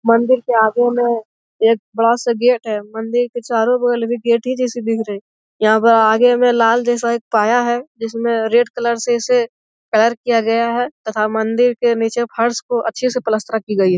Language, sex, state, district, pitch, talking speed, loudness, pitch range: Hindi, male, Bihar, Jamui, 235 Hz, 215 wpm, -16 LUFS, 225-240 Hz